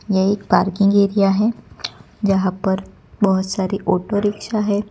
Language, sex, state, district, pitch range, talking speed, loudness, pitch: Hindi, female, Gujarat, Gandhinagar, 190-205 Hz, 145 wpm, -18 LUFS, 200 Hz